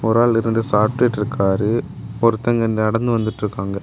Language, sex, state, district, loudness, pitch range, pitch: Tamil, male, Tamil Nadu, Kanyakumari, -18 LUFS, 105-115 Hz, 115 Hz